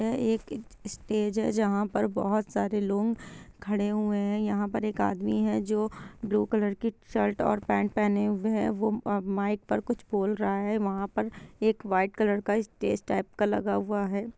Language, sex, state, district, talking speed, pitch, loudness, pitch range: Hindi, female, Bihar, Gopalganj, 190 wpm, 210 Hz, -28 LUFS, 200-215 Hz